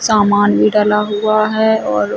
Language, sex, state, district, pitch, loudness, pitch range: Hindi, female, Chhattisgarh, Bilaspur, 210 Hz, -13 LUFS, 180-215 Hz